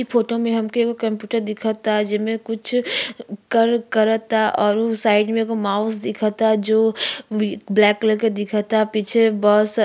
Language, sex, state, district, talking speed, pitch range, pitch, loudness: Bhojpuri, female, Uttar Pradesh, Gorakhpur, 160 wpm, 210-225 Hz, 220 Hz, -19 LUFS